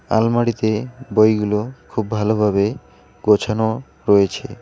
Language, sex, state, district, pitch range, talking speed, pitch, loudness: Bengali, male, West Bengal, Alipurduar, 105-120 Hz, 80 wpm, 110 Hz, -19 LUFS